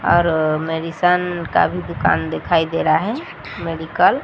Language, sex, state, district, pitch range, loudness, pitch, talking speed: Hindi, female, Odisha, Sambalpur, 160-180 Hz, -19 LUFS, 165 Hz, 155 wpm